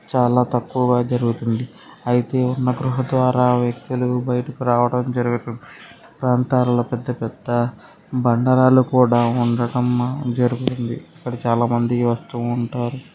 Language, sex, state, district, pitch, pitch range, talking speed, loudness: Telugu, male, Andhra Pradesh, Srikakulam, 125 Hz, 120-125 Hz, 115 wpm, -20 LUFS